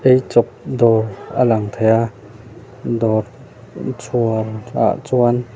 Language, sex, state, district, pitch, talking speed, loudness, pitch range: Mizo, male, Mizoram, Aizawl, 115 Hz, 120 wpm, -18 LUFS, 110-125 Hz